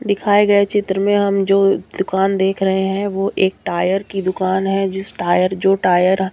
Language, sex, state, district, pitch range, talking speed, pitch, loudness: Hindi, female, Bihar, Katihar, 190-195 Hz, 200 wpm, 195 Hz, -17 LUFS